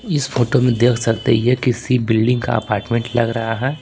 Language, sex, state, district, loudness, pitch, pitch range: Hindi, male, Bihar, Patna, -17 LUFS, 120 Hz, 115-125 Hz